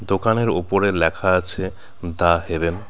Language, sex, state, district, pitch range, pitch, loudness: Bengali, male, West Bengal, Cooch Behar, 85-100 Hz, 95 Hz, -20 LUFS